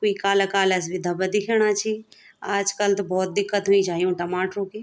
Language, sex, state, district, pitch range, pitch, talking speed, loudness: Garhwali, female, Uttarakhand, Tehri Garhwal, 185-205 Hz, 200 Hz, 210 wpm, -23 LUFS